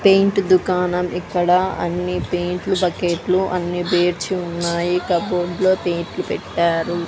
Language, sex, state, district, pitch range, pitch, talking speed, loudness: Telugu, female, Andhra Pradesh, Sri Satya Sai, 175-185 Hz, 180 Hz, 110 wpm, -19 LUFS